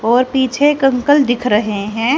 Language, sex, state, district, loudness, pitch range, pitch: Hindi, female, Haryana, Charkhi Dadri, -14 LUFS, 225-270 Hz, 250 Hz